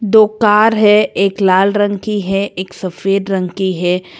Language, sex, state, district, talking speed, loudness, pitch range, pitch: Hindi, female, Karnataka, Bangalore, 185 wpm, -14 LUFS, 185-210 Hz, 195 Hz